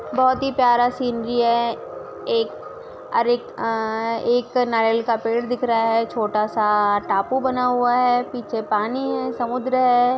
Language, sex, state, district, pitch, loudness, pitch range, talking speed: Hindi, female, Maharashtra, Sindhudurg, 240 Hz, -21 LUFS, 225-250 Hz, 140 wpm